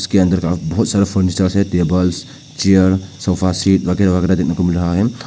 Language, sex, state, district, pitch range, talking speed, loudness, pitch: Hindi, male, Arunachal Pradesh, Papum Pare, 90-100 Hz, 205 wpm, -15 LUFS, 95 Hz